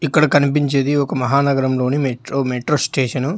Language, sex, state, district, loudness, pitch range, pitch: Telugu, male, Telangana, Hyderabad, -17 LUFS, 130-145 Hz, 140 Hz